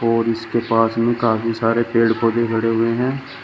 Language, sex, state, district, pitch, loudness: Hindi, male, Uttar Pradesh, Shamli, 115 Hz, -18 LUFS